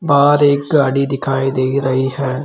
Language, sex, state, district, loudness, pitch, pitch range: Hindi, male, Rajasthan, Jaipur, -15 LUFS, 140 Hz, 135-145 Hz